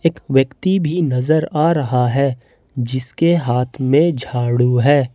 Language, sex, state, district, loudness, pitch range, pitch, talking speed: Hindi, male, Jharkhand, Ranchi, -17 LUFS, 125-160 Hz, 135 Hz, 140 wpm